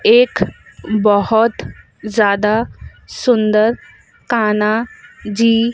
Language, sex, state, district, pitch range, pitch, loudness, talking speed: Hindi, female, Madhya Pradesh, Dhar, 210-240 Hz, 220 Hz, -15 LUFS, 65 wpm